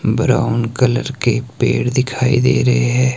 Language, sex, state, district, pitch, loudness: Hindi, male, Himachal Pradesh, Shimla, 120 Hz, -16 LUFS